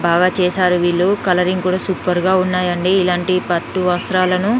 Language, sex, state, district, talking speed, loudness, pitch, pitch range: Telugu, female, Telangana, Nalgonda, 130 wpm, -16 LUFS, 180 Hz, 180-185 Hz